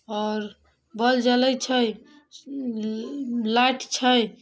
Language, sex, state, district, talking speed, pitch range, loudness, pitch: Maithili, female, Bihar, Samastipur, 80 wpm, 220-260 Hz, -23 LUFS, 245 Hz